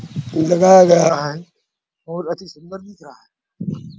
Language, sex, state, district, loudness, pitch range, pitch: Hindi, male, Chhattisgarh, Bastar, -14 LUFS, 160-185 Hz, 170 Hz